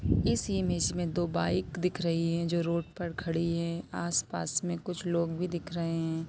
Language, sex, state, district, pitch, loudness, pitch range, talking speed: Hindi, female, Jharkhand, Sahebganj, 170 Hz, -31 LUFS, 160-175 Hz, 200 wpm